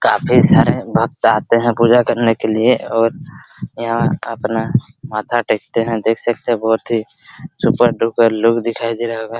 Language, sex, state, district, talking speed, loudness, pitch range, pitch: Hindi, male, Bihar, Araria, 170 wpm, -16 LUFS, 115-120 Hz, 115 Hz